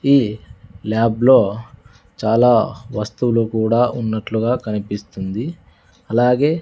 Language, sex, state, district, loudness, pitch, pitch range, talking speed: Telugu, male, Andhra Pradesh, Sri Satya Sai, -18 LUFS, 115 Hz, 110-125 Hz, 80 wpm